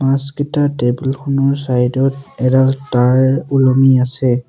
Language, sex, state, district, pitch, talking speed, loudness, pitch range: Assamese, male, Assam, Sonitpur, 135 Hz, 120 wpm, -15 LUFS, 130-140 Hz